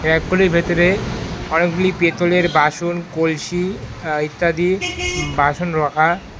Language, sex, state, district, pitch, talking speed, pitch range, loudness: Bengali, male, West Bengal, Alipurduar, 170 Hz, 95 wpm, 155-175 Hz, -18 LUFS